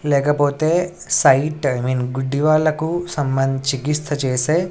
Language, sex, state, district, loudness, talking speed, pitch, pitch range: Telugu, male, Andhra Pradesh, Sri Satya Sai, -19 LUFS, 115 wpm, 145 Hz, 135-155 Hz